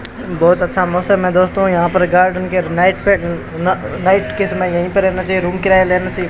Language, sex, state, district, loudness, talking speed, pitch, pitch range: Hindi, male, Rajasthan, Bikaner, -14 LUFS, 220 wpm, 185 Hz, 180-190 Hz